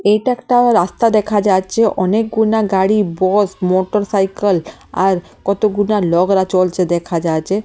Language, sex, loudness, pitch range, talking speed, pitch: Bengali, female, -15 LUFS, 185-215 Hz, 115 wpm, 200 Hz